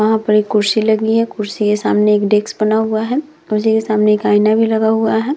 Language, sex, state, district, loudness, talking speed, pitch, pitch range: Hindi, female, Bihar, Vaishali, -15 LUFS, 255 wpm, 220 Hz, 210-220 Hz